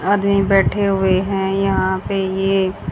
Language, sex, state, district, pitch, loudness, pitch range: Hindi, female, Haryana, Charkhi Dadri, 195 Hz, -17 LUFS, 190-195 Hz